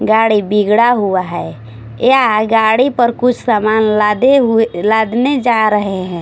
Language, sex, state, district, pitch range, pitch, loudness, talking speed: Hindi, female, Odisha, Khordha, 210-240 Hz, 220 Hz, -12 LUFS, 145 wpm